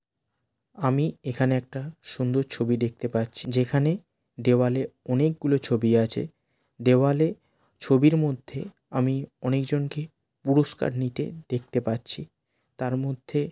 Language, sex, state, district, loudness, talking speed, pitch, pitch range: Bengali, male, West Bengal, Malda, -26 LUFS, 105 wpm, 130 Hz, 125-145 Hz